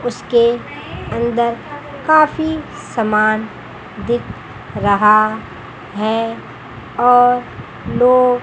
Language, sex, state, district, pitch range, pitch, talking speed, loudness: Hindi, female, Chandigarh, Chandigarh, 220-245 Hz, 235 Hz, 65 wpm, -15 LUFS